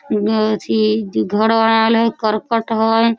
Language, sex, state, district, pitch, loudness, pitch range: Maithili, female, Bihar, Samastipur, 220 Hz, -16 LUFS, 210-225 Hz